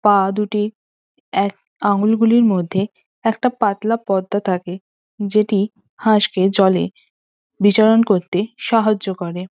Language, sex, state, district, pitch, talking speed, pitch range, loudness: Bengali, female, West Bengal, North 24 Parganas, 205 Hz, 105 wpm, 190-220 Hz, -18 LUFS